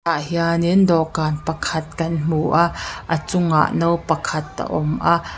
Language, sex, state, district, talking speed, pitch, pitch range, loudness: Mizo, female, Mizoram, Aizawl, 170 wpm, 165 Hz, 155-170 Hz, -20 LUFS